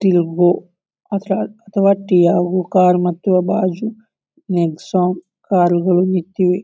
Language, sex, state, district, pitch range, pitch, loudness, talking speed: Kannada, male, Karnataka, Bijapur, 175-195 Hz, 185 Hz, -16 LUFS, 110 wpm